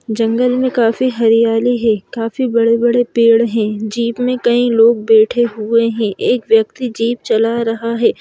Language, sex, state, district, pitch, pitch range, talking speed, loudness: Hindi, female, Madhya Pradesh, Bhopal, 230 Hz, 225-240 Hz, 160 wpm, -14 LUFS